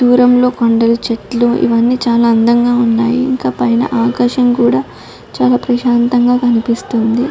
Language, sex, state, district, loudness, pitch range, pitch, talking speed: Telugu, female, Andhra Pradesh, Chittoor, -12 LUFS, 230-245 Hz, 240 Hz, 115 wpm